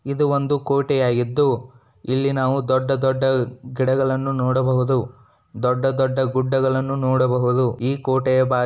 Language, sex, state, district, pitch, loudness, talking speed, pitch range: Kannada, male, Karnataka, Dakshina Kannada, 130 Hz, -20 LUFS, 110 wpm, 125-135 Hz